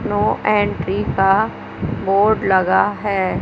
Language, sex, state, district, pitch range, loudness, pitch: Hindi, male, Madhya Pradesh, Katni, 195-205 Hz, -17 LUFS, 200 Hz